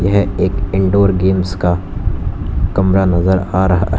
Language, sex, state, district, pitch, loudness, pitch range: Hindi, male, Uttar Pradesh, Lalitpur, 95 Hz, -15 LUFS, 90-95 Hz